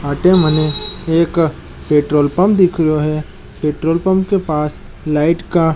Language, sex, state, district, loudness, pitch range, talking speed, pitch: Marwari, male, Rajasthan, Nagaur, -15 LUFS, 150-175 Hz, 145 wpm, 160 Hz